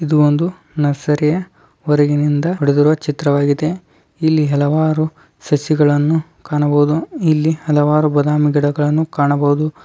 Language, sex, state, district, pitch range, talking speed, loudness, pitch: Kannada, male, Karnataka, Dharwad, 145-155 Hz, 90 wpm, -16 LUFS, 150 Hz